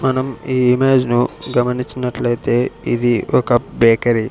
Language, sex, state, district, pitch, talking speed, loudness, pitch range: Telugu, male, Andhra Pradesh, Sri Satya Sai, 125 Hz, 125 wpm, -16 LUFS, 120-130 Hz